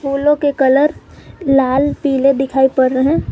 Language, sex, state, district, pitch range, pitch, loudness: Hindi, female, Jharkhand, Garhwa, 265-285 Hz, 275 Hz, -14 LUFS